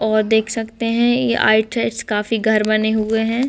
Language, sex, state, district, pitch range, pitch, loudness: Hindi, female, Bihar, Gaya, 215-230 Hz, 220 Hz, -17 LUFS